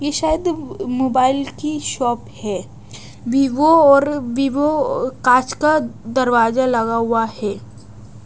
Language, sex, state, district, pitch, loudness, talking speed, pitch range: Hindi, female, Odisha, Nuapada, 255 Hz, -17 LUFS, 110 wpm, 225-295 Hz